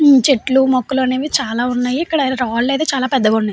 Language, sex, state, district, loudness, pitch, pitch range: Telugu, female, Andhra Pradesh, Chittoor, -16 LUFS, 260 Hz, 250-275 Hz